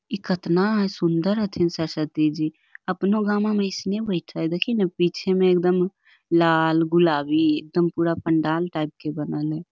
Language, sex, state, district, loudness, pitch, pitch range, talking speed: Magahi, female, Bihar, Lakhisarai, -22 LUFS, 175 Hz, 160-195 Hz, 150 wpm